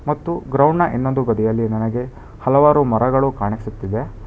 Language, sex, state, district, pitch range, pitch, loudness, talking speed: Kannada, male, Karnataka, Bangalore, 110-140 Hz, 125 Hz, -18 LUFS, 125 wpm